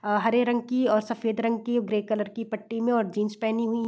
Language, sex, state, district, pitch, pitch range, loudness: Hindi, female, Bihar, East Champaran, 225 Hz, 215-235 Hz, -26 LUFS